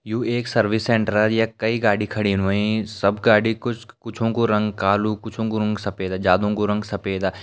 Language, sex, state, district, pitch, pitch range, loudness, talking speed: Garhwali, male, Uttarakhand, Uttarkashi, 105 Hz, 100-115 Hz, -21 LUFS, 195 wpm